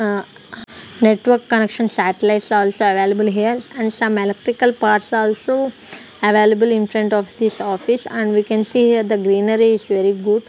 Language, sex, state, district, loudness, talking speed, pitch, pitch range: English, female, Punjab, Kapurthala, -17 LUFS, 160 wpm, 215 Hz, 210-230 Hz